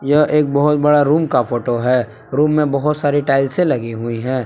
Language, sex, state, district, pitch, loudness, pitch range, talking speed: Hindi, male, Jharkhand, Palamu, 140 Hz, -16 LUFS, 125-150 Hz, 215 wpm